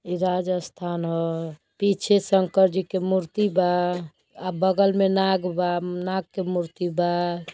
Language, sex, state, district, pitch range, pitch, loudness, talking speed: Bhojpuri, female, Uttar Pradesh, Gorakhpur, 175-190 Hz, 180 Hz, -24 LUFS, 145 wpm